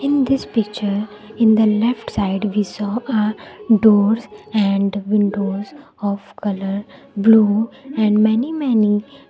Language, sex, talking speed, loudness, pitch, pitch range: English, female, 130 wpm, -18 LUFS, 215 Hz, 205-230 Hz